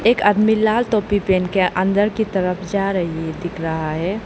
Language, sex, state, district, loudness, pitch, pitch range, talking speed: Hindi, female, Arunachal Pradesh, Lower Dibang Valley, -19 LUFS, 195 Hz, 180-210 Hz, 210 wpm